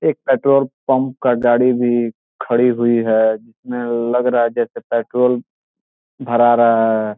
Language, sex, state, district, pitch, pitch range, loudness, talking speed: Hindi, male, Bihar, Gopalganj, 120 Hz, 115-130 Hz, -16 LUFS, 150 wpm